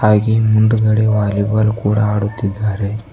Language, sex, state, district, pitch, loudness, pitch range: Kannada, male, Karnataka, Bidar, 105 Hz, -15 LUFS, 105-110 Hz